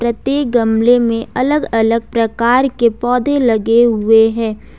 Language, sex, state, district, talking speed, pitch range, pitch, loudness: Hindi, female, Jharkhand, Ranchi, 140 wpm, 225-245 Hz, 235 Hz, -14 LUFS